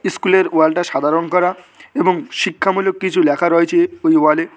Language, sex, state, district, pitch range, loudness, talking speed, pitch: Bengali, male, West Bengal, Cooch Behar, 165-190 Hz, -15 LUFS, 155 wpm, 180 Hz